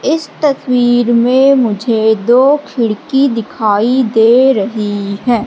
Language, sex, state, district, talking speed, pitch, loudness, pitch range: Hindi, female, Madhya Pradesh, Katni, 110 wpm, 240 Hz, -12 LUFS, 220-265 Hz